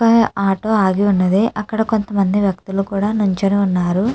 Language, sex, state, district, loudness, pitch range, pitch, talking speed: Telugu, female, Andhra Pradesh, Chittoor, -17 LUFS, 195-215 Hz, 200 Hz, 160 wpm